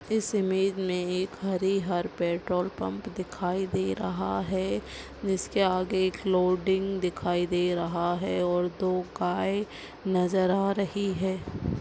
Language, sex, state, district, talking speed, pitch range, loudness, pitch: Hindi, female, Chhattisgarh, Balrampur, 135 wpm, 180-190 Hz, -28 LUFS, 185 Hz